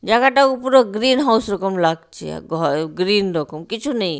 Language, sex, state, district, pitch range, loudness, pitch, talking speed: Bengali, female, Odisha, Nuapada, 165-255 Hz, -18 LUFS, 205 Hz, 145 wpm